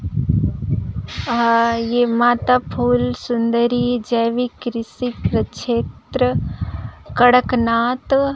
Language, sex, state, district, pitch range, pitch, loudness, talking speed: Hindi, female, Chhattisgarh, Narayanpur, 230-245 Hz, 240 Hz, -18 LUFS, 85 wpm